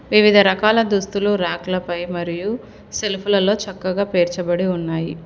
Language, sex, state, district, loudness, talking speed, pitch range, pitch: Telugu, female, Telangana, Hyderabad, -19 LUFS, 125 wpm, 175-205 Hz, 190 Hz